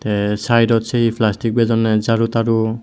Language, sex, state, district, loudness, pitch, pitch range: Chakma, male, Tripura, West Tripura, -17 LUFS, 115 Hz, 110-115 Hz